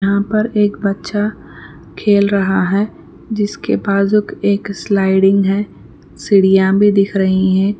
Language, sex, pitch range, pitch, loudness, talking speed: Urdu, female, 195-205 Hz, 200 Hz, -15 LUFS, 140 wpm